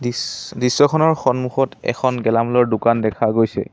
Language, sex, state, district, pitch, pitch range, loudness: Assamese, male, Assam, Sonitpur, 125 Hz, 115-135 Hz, -18 LUFS